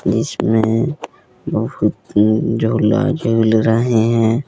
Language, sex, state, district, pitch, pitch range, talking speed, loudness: Hindi, male, Jharkhand, Deoghar, 115 Hz, 110-115 Hz, 80 wpm, -16 LUFS